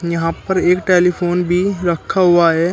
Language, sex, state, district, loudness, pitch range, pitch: Hindi, male, Uttar Pradesh, Shamli, -15 LUFS, 170-180 Hz, 175 Hz